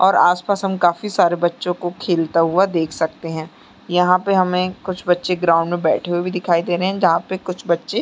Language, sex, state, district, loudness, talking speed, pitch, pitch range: Hindi, female, Chhattisgarh, Sarguja, -18 LUFS, 230 wpm, 180 Hz, 170-185 Hz